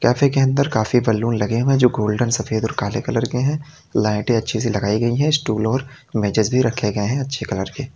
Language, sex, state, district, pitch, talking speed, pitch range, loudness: Hindi, male, Uttar Pradesh, Lalitpur, 115 Hz, 235 wpm, 110-130 Hz, -19 LUFS